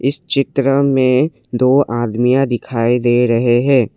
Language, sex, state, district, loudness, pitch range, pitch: Hindi, male, Assam, Kamrup Metropolitan, -14 LUFS, 120-135 Hz, 130 Hz